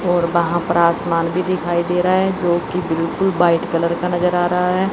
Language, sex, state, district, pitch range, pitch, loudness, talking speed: Hindi, female, Chandigarh, Chandigarh, 170-180 Hz, 175 Hz, -17 LUFS, 230 wpm